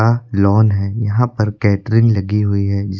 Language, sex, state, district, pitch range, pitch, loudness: Hindi, male, Uttar Pradesh, Lucknow, 100-115 Hz, 105 Hz, -15 LUFS